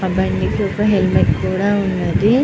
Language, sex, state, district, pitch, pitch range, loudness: Telugu, female, Andhra Pradesh, Chittoor, 200 Hz, 190-205 Hz, -17 LUFS